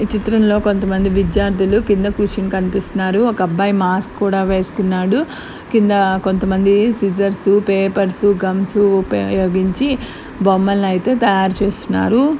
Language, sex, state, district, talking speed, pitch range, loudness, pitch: Telugu, female, Telangana, Nalgonda, 105 wpm, 190-205 Hz, -16 LUFS, 195 Hz